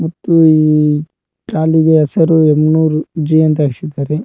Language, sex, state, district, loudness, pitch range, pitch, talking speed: Kannada, male, Karnataka, Koppal, -12 LUFS, 150-160 Hz, 155 Hz, 115 wpm